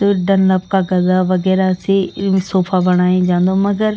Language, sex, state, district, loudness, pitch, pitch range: Garhwali, female, Uttarakhand, Tehri Garhwal, -15 LUFS, 185 Hz, 185-195 Hz